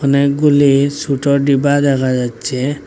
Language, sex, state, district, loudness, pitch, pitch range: Bengali, male, Assam, Hailakandi, -14 LUFS, 140 Hz, 135-145 Hz